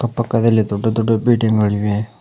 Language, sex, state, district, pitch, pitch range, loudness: Kannada, male, Karnataka, Koppal, 110 Hz, 105-115 Hz, -16 LUFS